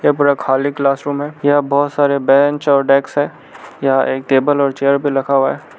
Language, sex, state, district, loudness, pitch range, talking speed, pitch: Hindi, male, Arunachal Pradesh, Lower Dibang Valley, -15 LUFS, 135-145 Hz, 220 wpm, 140 Hz